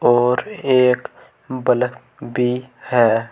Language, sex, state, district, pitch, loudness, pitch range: Hindi, male, Uttar Pradesh, Saharanpur, 125 Hz, -18 LUFS, 120-130 Hz